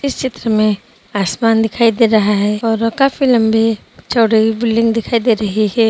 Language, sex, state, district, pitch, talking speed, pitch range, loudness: Hindi, female, Uttar Pradesh, Jyotiba Phule Nagar, 225 Hz, 175 wpm, 215-230 Hz, -14 LUFS